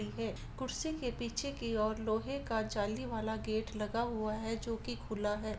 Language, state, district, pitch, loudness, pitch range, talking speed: Santali, Jharkhand, Sahebganj, 220 Hz, -37 LUFS, 215-235 Hz, 195 wpm